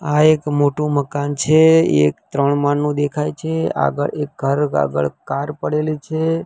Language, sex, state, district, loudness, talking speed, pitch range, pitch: Gujarati, male, Gujarat, Gandhinagar, -18 LUFS, 160 wpm, 140-155 Hz, 145 Hz